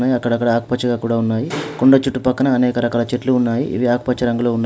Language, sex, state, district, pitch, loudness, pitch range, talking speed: Telugu, male, Telangana, Adilabad, 125 Hz, -17 LUFS, 120-130 Hz, 180 wpm